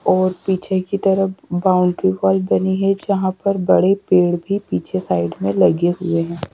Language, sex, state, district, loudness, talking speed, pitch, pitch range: Hindi, female, Madhya Pradesh, Dhar, -18 LUFS, 175 wpm, 185 Hz, 165-190 Hz